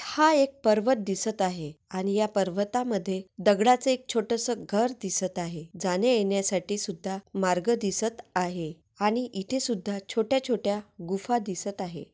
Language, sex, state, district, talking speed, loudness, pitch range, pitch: Marathi, female, Maharashtra, Nagpur, 145 wpm, -27 LUFS, 190-235 Hz, 205 Hz